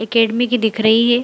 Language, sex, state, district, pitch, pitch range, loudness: Hindi, female, Bihar, Samastipur, 230 Hz, 220-240 Hz, -15 LUFS